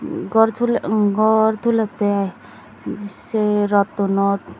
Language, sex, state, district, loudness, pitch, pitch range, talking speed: Chakma, female, Tripura, Dhalai, -19 LUFS, 210 Hz, 200-220 Hz, 90 wpm